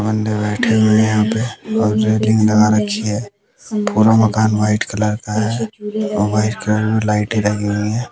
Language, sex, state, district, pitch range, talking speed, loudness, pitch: Hindi, male, Bihar, West Champaran, 105-110 Hz, 185 wpm, -16 LUFS, 110 Hz